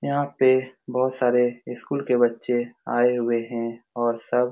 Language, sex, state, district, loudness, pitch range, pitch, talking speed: Hindi, male, Bihar, Supaul, -23 LUFS, 120-130 Hz, 125 Hz, 170 wpm